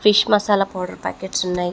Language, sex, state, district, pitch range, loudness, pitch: Telugu, female, Andhra Pradesh, Chittoor, 180-210 Hz, -20 LUFS, 190 Hz